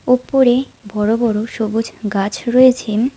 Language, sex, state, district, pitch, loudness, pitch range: Bengali, female, West Bengal, Alipurduar, 230 Hz, -16 LUFS, 215-250 Hz